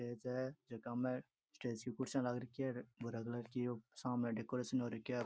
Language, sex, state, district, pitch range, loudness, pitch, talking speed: Rajasthani, male, Rajasthan, Churu, 120-130 Hz, -43 LUFS, 125 Hz, 230 wpm